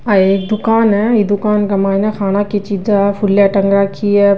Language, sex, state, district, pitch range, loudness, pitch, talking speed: Rajasthani, female, Rajasthan, Nagaur, 200-210 Hz, -13 LUFS, 205 Hz, 205 wpm